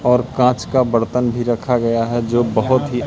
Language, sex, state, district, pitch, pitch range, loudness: Hindi, male, Madhya Pradesh, Katni, 120 Hz, 115-125 Hz, -17 LUFS